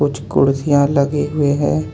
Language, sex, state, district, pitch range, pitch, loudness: Hindi, male, Jharkhand, Ranchi, 135-145 Hz, 140 Hz, -16 LUFS